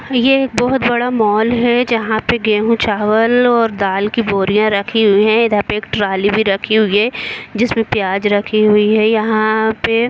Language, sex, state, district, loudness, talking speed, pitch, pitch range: Hindi, female, Jharkhand, Jamtara, -14 LUFS, 190 wpm, 220 Hz, 210-235 Hz